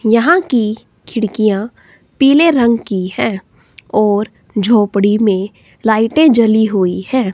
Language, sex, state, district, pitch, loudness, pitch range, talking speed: Hindi, female, Himachal Pradesh, Shimla, 220 Hz, -13 LUFS, 205-240 Hz, 115 wpm